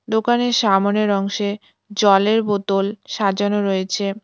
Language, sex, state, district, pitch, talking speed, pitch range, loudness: Bengali, female, West Bengal, Cooch Behar, 205 Hz, 100 wpm, 195-215 Hz, -18 LUFS